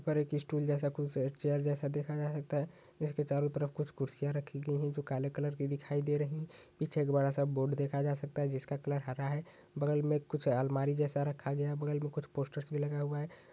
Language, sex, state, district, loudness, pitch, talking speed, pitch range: Hindi, male, Chhattisgarh, Sukma, -36 LUFS, 145 Hz, 250 wpm, 140-150 Hz